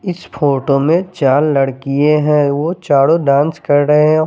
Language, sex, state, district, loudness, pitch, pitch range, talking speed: Hindi, male, Chandigarh, Chandigarh, -13 LUFS, 145 Hz, 140-155 Hz, 155 wpm